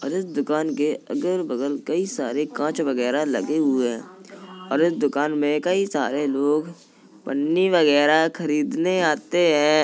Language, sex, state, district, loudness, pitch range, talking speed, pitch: Hindi, female, Uttar Pradesh, Jalaun, -22 LUFS, 145-175 Hz, 150 wpm, 150 Hz